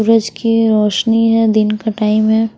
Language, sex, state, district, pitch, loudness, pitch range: Hindi, female, Haryana, Rohtak, 220 Hz, -13 LUFS, 215-225 Hz